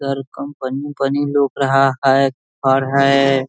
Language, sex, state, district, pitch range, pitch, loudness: Hindi, male, Bihar, East Champaran, 135-140 Hz, 135 Hz, -17 LUFS